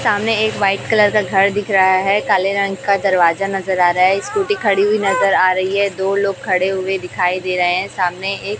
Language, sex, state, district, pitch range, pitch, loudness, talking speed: Hindi, female, Chhattisgarh, Raipur, 185-200 Hz, 195 Hz, -16 LUFS, 235 wpm